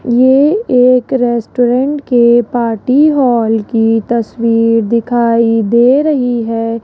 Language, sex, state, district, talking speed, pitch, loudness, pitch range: Hindi, female, Rajasthan, Jaipur, 105 wpm, 240 Hz, -11 LUFS, 230-255 Hz